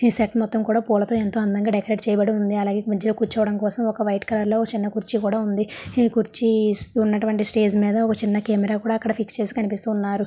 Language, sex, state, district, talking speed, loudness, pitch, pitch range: Telugu, female, Andhra Pradesh, Srikakulam, 195 wpm, -21 LUFS, 215 Hz, 210-225 Hz